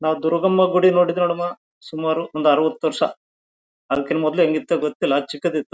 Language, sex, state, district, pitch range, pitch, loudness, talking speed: Kannada, male, Karnataka, Bellary, 155-175 Hz, 160 Hz, -20 LUFS, 145 wpm